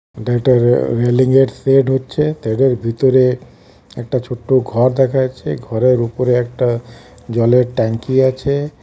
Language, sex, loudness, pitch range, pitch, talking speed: Bengali, male, -15 LUFS, 120-130 Hz, 125 Hz, 130 wpm